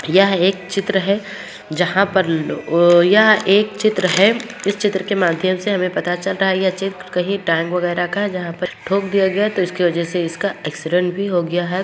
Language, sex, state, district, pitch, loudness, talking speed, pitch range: Hindi, female, Bihar, Madhepura, 185 Hz, -17 LUFS, 230 wpm, 175-200 Hz